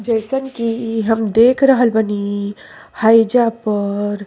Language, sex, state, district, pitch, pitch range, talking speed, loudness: Bhojpuri, female, Uttar Pradesh, Deoria, 225 Hz, 210-235 Hz, 125 wpm, -16 LUFS